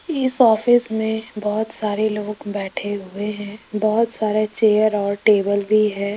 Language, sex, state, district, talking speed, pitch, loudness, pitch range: Hindi, female, Rajasthan, Jaipur, 155 wpm, 215 Hz, -18 LUFS, 205-220 Hz